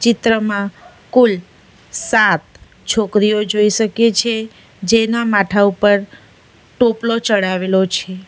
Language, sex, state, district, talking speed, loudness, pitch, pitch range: Gujarati, female, Gujarat, Valsad, 95 wpm, -15 LUFS, 210 Hz, 190-225 Hz